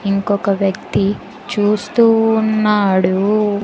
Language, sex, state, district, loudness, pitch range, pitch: Telugu, female, Andhra Pradesh, Sri Satya Sai, -15 LUFS, 195-215 Hz, 205 Hz